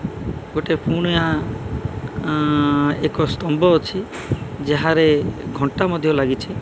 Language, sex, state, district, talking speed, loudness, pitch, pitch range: Odia, male, Odisha, Malkangiri, 90 wpm, -20 LUFS, 150 Hz, 140-160 Hz